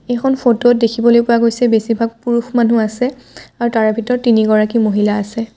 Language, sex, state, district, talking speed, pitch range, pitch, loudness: Assamese, female, Assam, Kamrup Metropolitan, 185 wpm, 225-240 Hz, 230 Hz, -14 LUFS